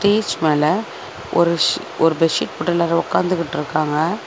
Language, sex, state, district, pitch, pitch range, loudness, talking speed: Tamil, female, Tamil Nadu, Chennai, 170 Hz, 155-175 Hz, -18 LUFS, 125 wpm